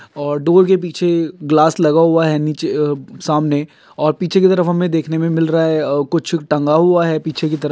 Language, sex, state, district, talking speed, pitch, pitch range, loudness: Hindi, male, Bihar, Kishanganj, 225 wpm, 160 Hz, 150-170 Hz, -15 LUFS